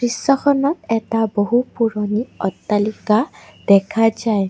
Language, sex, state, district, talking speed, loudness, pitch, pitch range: Assamese, female, Assam, Kamrup Metropolitan, 95 wpm, -18 LUFS, 225 Hz, 210-240 Hz